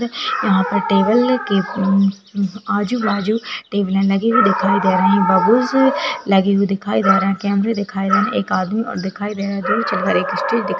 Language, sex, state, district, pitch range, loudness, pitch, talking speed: Hindi, female, Uttar Pradesh, Ghazipur, 190-220 Hz, -17 LUFS, 200 Hz, 190 wpm